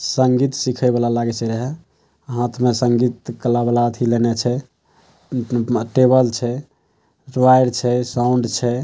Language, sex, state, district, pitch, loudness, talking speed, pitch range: Maithili, male, Bihar, Saharsa, 120 Hz, -18 LUFS, 115 wpm, 120-125 Hz